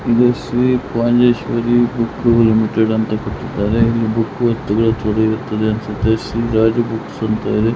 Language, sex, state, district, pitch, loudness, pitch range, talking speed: Kannada, male, Karnataka, Mysore, 115 Hz, -16 LUFS, 110-120 Hz, 125 wpm